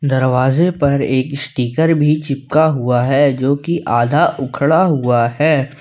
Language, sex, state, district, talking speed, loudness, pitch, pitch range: Hindi, male, Jharkhand, Ranchi, 145 wpm, -15 LUFS, 140 Hz, 130-155 Hz